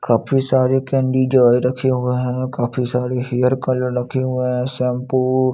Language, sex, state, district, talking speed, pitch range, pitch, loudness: Hindi, male, Chandigarh, Chandigarh, 185 wpm, 125-130 Hz, 125 Hz, -18 LUFS